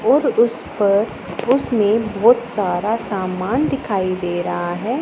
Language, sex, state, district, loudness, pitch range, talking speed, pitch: Hindi, female, Punjab, Pathankot, -19 LUFS, 190-240 Hz, 130 wpm, 215 Hz